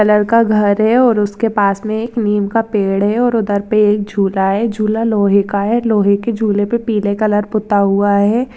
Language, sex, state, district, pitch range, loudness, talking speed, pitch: Hindi, female, Maharashtra, Dhule, 205-225 Hz, -14 LUFS, 225 wpm, 210 Hz